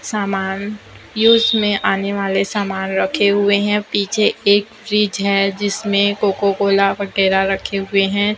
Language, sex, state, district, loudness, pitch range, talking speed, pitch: Hindi, female, Chhattisgarh, Raipur, -16 LUFS, 195-210 Hz, 145 wpm, 200 Hz